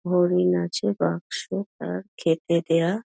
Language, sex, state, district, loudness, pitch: Bengali, female, West Bengal, Dakshin Dinajpur, -24 LUFS, 165 Hz